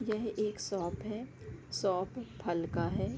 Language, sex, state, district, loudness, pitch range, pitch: Hindi, female, Bihar, East Champaran, -36 LUFS, 165-215 Hz, 185 Hz